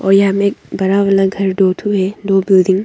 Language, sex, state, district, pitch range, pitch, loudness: Hindi, female, Arunachal Pradesh, Longding, 190-200 Hz, 195 Hz, -14 LUFS